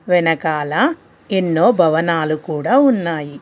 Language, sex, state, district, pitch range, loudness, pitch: Telugu, female, Telangana, Hyderabad, 160-200 Hz, -16 LUFS, 170 Hz